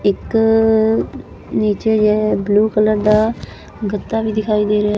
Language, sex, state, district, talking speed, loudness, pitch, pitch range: Punjabi, female, Punjab, Fazilka, 120 wpm, -16 LUFS, 215 Hz, 210-220 Hz